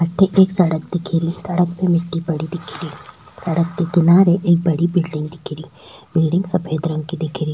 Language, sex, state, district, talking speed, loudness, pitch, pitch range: Rajasthani, female, Rajasthan, Churu, 205 wpm, -18 LUFS, 170 Hz, 160-175 Hz